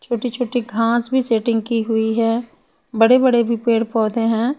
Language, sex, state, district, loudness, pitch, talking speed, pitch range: Hindi, female, Bihar, Patna, -18 LUFS, 230 Hz, 185 wpm, 225-245 Hz